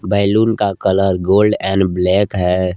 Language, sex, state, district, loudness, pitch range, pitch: Hindi, male, Jharkhand, Palamu, -15 LUFS, 90-100 Hz, 95 Hz